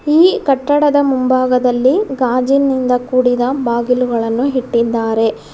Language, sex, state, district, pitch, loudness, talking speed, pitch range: Kannada, female, Karnataka, Bangalore, 255 Hz, -14 LUFS, 75 wpm, 245-275 Hz